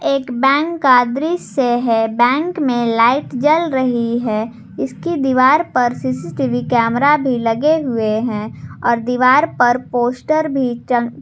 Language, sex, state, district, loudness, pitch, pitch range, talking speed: Hindi, female, Jharkhand, Garhwa, -16 LUFS, 245 Hz, 235-275 Hz, 140 wpm